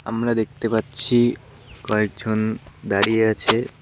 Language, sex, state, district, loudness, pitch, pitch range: Bengali, male, West Bengal, Cooch Behar, -21 LUFS, 115 Hz, 110-120 Hz